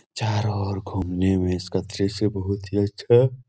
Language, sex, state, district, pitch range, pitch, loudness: Hindi, male, Uttar Pradesh, Etah, 95-105 Hz, 100 Hz, -24 LUFS